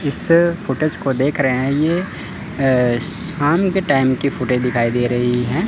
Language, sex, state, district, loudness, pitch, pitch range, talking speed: Hindi, male, Chandigarh, Chandigarh, -18 LUFS, 135 Hz, 125-165 Hz, 180 wpm